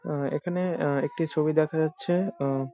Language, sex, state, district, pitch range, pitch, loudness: Bengali, male, West Bengal, Jalpaiguri, 140-175 Hz, 155 Hz, -27 LUFS